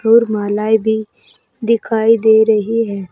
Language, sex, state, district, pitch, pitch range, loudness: Hindi, female, Uttar Pradesh, Saharanpur, 220 Hz, 215-230 Hz, -14 LUFS